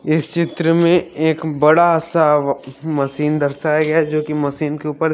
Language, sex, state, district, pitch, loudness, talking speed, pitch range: Hindi, female, Haryana, Charkhi Dadri, 155 Hz, -17 LUFS, 185 wpm, 150-160 Hz